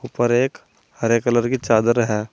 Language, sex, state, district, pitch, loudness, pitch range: Hindi, male, Uttar Pradesh, Saharanpur, 120 Hz, -19 LUFS, 115-120 Hz